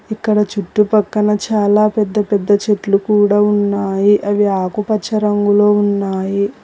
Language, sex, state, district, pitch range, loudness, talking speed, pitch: Telugu, female, Telangana, Hyderabad, 200-210 Hz, -15 LUFS, 110 wpm, 205 Hz